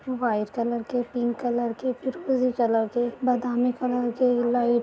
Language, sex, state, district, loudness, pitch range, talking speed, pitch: Hindi, female, Bihar, Darbhanga, -25 LUFS, 240-250 Hz, 175 wpm, 245 Hz